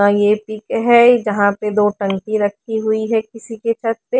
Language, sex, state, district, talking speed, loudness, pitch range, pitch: Hindi, female, Haryana, Rohtak, 200 wpm, -16 LUFS, 205-225 Hz, 220 Hz